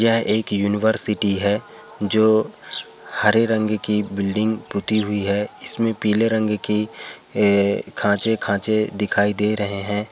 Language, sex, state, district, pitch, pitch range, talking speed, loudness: Hindi, male, Andhra Pradesh, Chittoor, 105 Hz, 100-110 Hz, 140 wpm, -19 LUFS